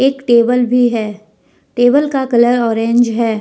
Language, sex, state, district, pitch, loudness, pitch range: Hindi, female, Jharkhand, Deoghar, 240 Hz, -13 LUFS, 230-250 Hz